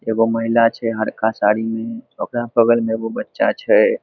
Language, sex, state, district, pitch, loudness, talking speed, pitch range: Maithili, male, Bihar, Madhepura, 115 Hz, -18 LUFS, 180 wpm, 110-120 Hz